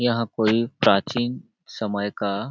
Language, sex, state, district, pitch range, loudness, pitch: Hindi, male, Chhattisgarh, Balrampur, 100-120 Hz, -23 LUFS, 110 Hz